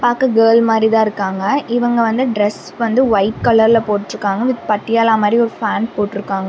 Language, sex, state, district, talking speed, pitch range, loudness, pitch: Tamil, female, Tamil Nadu, Namakkal, 175 wpm, 205-235 Hz, -15 LUFS, 225 Hz